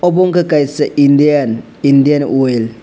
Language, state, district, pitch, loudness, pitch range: Kokborok, Tripura, West Tripura, 145 Hz, -12 LUFS, 135-150 Hz